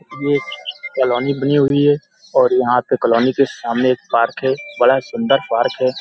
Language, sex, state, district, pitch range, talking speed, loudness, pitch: Hindi, male, Uttar Pradesh, Hamirpur, 125-145 Hz, 180 wpm, -17 LUFS, 130 Hz